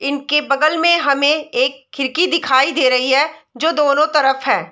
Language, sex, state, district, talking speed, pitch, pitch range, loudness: Hindi, female, Bihar, Darbhanga, 180 wpm, 285 Hz, 270-310 Hz, -15 LUFS